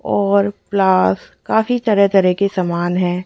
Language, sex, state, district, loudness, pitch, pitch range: Hindi, female, Delhi, New Delhi, -16 LUFS, 195 Hz, 180-200 Hz